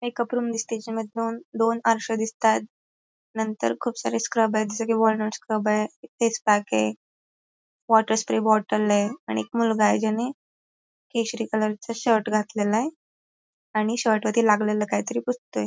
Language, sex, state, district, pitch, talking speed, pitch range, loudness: Marathi, female, Maharashtra, Pune, 220 Hz, 155 wpm, 215-230 Hz, -24 LUFS